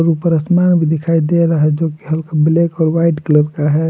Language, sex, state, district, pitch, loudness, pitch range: Hindi, male, Jharkhand, Palamu, 160 Hz, -14 LUFS, 155-165 Hz